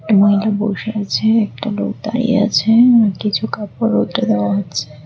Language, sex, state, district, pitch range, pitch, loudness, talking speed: Bengali, female, Tripura, West Tripura, 200-220 Hz, 210 Hz, -16 LUFS, 165 wpm